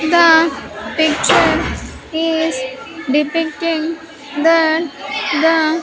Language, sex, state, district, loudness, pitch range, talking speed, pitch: English, female, Andhra Pradesh, Sri Satya Sai, -15 LUFS, 285-325 Hz, 60 wpm, 320 Hz